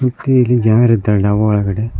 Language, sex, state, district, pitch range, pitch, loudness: Kannada, male, Karnataka, Koppal, 105-125 Hz, 110 Hz, -13 LUFS